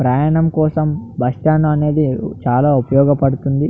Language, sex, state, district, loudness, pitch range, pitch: Telugu, male, Andhra Pradesh, Anantapur, -15 LUFS, 135-155 Hz, 145 Hz